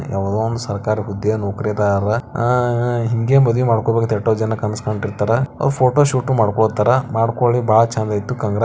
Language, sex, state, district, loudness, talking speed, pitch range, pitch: Kannada, male, Karnataka, Bijapur, -18 LUFS, 185 wpm, 105-120 Hz, 115 Hz